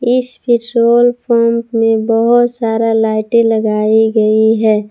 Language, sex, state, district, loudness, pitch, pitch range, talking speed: Hindi, female, Jharkhand, Palamu, -12 LUFS, 225 Hz, 220-235 Hz, 120 wpm